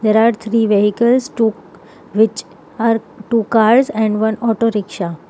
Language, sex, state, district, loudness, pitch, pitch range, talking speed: English, female, Telangana, Hyderabad, -15 LUFS, 225 Hz, 215-230 Hz, 145 wpm